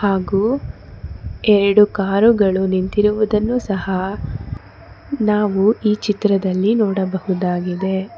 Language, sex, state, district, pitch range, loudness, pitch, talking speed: Kannada, female, Karnataka, Bangalore, 185-210 Hz, -17 LUFS, 195 Hz, 65 wpm